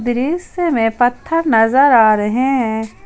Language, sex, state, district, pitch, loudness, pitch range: Hindi, female, Jharkhand, Ranchi, 245 Hz, -14 LUFS, 225-280 Hz